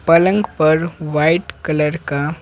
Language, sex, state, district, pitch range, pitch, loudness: Hindi, male, Bihar, Patna, 150-170 Hz, 160 Hz, -17 LUFS